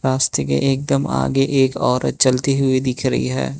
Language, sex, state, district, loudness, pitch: Hindi, male, Manipur, Imphal West, -18 LUFS, 125 Hz